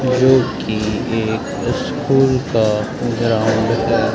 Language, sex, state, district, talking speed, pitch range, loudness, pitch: Hindi, male, Madhya Pradesh, Dhar, 100 wpm, 110-130 Hz, -17 LUFS, 115 Hz